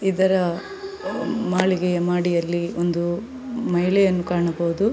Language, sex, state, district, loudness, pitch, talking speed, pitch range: Kannada, female, Karnataka, Dakshina Kannada, -22 LUFS, 180 Hz, 85 wpm, 175-195 Hz